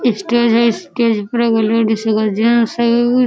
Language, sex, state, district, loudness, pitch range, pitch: Maithili, female, Bihar, Samastipur, -14 LUFS, 220-235 Hz, 235 Hz